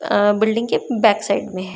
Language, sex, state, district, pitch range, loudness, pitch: Hindi, female, Maharashtra, Chandrapur, 200-225 Hz, -18 LUFS, 210 Hz